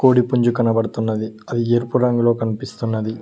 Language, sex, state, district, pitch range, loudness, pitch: Telugu, male, Telangana, Mahabubabad, 110-120 Hz, -19 LUFS, 115 Hz